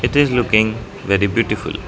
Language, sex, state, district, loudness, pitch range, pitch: English, male, Arunachal Pradesh, Lower Dibang Valley, -17 LUFS, 105-120 Hz, 115 Hz